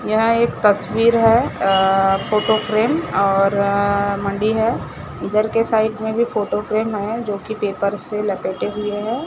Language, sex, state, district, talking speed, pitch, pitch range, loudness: Hindi, male, Maharashtra, Gondia, 155 wpm, 210 Hz, 200-220 Hz, -18 LUFS